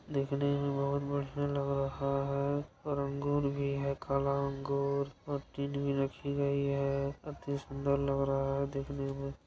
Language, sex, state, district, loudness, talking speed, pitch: Hindi, male, Bihar, Saran, -34 LUFS, 165 wpm, 140 Hz